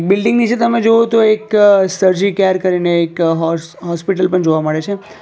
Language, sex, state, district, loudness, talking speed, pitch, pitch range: Gujarati, male, Gujarat, Valsad, -14 LUFS, 185 wpm, 190 Hz, 170-215 Hz